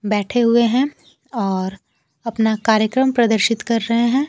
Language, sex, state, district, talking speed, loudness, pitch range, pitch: Hindi, female, Bihar, Kaimur, 140 wpm, -18 LUFS, 215-240 Hz, 230 Hz